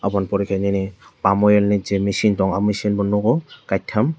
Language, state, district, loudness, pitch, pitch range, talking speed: Kokborok, Tripura, West Tripura, -19 LUFS, 100 Hz, 100-105 Hz, 230 wpm